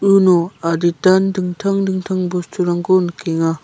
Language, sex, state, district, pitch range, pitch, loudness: Garo, male, Meghalaya, South Garo Hills, 175-190 Hz, 185 Hz, -17 LUFS